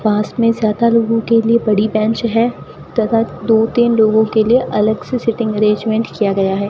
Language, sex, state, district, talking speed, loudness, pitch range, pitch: Hindi, female, Rajasthan, Bikaner, 195 wpm, -15 LUFS, 215-230 Hz, 225 Hz